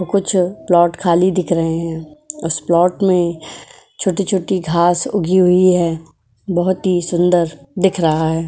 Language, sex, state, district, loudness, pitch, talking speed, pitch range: Hindi, female, Uttar Pradesh, Etah, -16 LUFS, 175 Hz, 150 wpm, 165-185 Hz